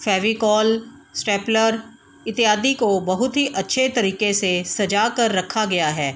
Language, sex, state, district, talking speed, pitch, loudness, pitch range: Hindi, female, Bihar, East Champaran, 135 wpm, 215 Hz, -20 LUFS, 195-230 Hz